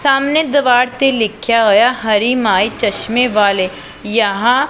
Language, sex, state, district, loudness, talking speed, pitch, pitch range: Punjabi, female, Punjab, Pathankot, -13 LUFS, 130 wpm, 245 Hz, 220-270 Hz